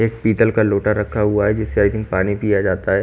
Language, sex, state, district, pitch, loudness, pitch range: Hindi, male, Haryana, Charkhi Dadri, 105 Hz, -18 LUFS, 100-110 Hz